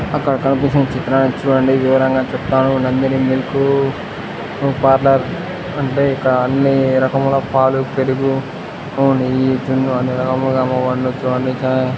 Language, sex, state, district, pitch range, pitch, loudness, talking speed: Telugu, male, Karnataka, Gulbarga, 130-135 Hz, 130 Hz, -16 LUFS, 100 wpm